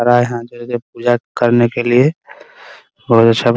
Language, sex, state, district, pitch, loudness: Hindi, male, Bihar, Muzaffarpur, 120 Hz, -14 LUFS